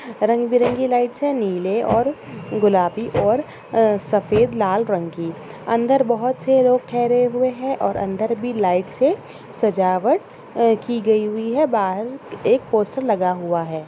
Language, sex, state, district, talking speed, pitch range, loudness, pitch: Hindi, female, Bihar, Darbhanga, 155 wpm, 200-250 Hz, -19 LUFS, 230 Hz